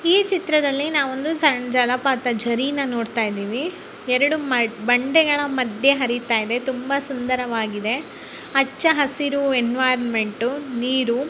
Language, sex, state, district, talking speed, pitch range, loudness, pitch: Kannada, female, Karnataka, Bijapur, 90 wpm, 240-285 Hz, -20 LUFS, 260 Hz